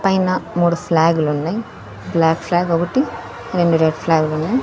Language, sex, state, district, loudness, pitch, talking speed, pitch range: Telugu, female, Andhra Pradesh, Sri Satya Sai, -18 LUFS, 170 Hz, 140 wpm, 160-185 Hz